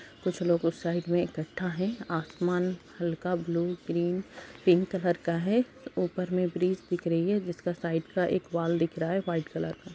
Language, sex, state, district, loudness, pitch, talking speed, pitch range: Hindi, female, Uttar Pradesh, Budaun, -30 LUFS, 175 Hz, 195 wpm, 170-180 Hz